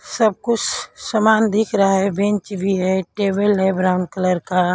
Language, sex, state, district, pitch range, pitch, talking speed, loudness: Hindi, female, Maharashtra, Mumbai Suburban, 185-210 Hz, 195 Hz, 175 wpm, -18 LUFS